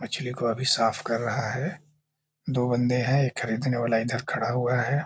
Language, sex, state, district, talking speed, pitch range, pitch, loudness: Hindi, male, Bihar, Jahanabad, 215 wpm, 120-140 Hz, 125 Hz, -26 LUFS